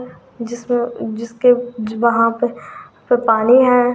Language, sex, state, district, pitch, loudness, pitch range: Kumaoni, female, Uttarakhand, Tehri Garhwal, 240 Hz, -16 LUFS, 230-245 Hz